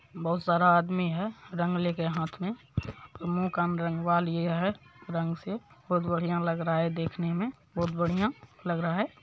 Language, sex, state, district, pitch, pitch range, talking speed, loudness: Maithili, male, Bihar, Supaul, 175 Hz, 170-180 Hz, 175 wpm, -30 LUFS